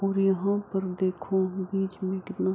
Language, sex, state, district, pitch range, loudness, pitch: Hindi, female, Bihar, Kishanganj, 185-195 Hz, -28 LUFS, 190 Hz